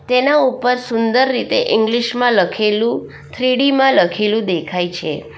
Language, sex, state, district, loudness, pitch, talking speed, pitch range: Gujarati, female, Gujarat, Valsad, -16 LUFS, 235 Hz, 145 wpm, 210-255 Hz